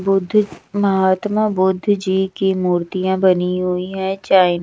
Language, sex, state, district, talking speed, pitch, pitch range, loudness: Hindi, female, Bihar, West Champaran, 115 wpm, 190 Hz, 185-195 Hz, -17 LUFS